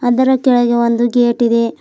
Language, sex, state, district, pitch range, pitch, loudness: Kannada, female, Karnataka, Bidar, 235-245 Hz, 240 Hz, -13 LUFS